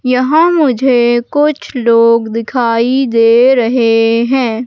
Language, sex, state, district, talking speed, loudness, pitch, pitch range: Hindi, female, Madhya Pradesh, Katni, 100 wpm, -11 LUFS, 240 Hz, 230-260 Hz